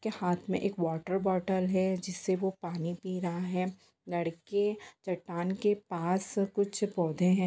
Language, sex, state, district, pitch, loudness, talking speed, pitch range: Hindi, female, Bihar, Sitamarhi, 185 Hz, -32 LUFS, 160 wpm, 175-195 Hz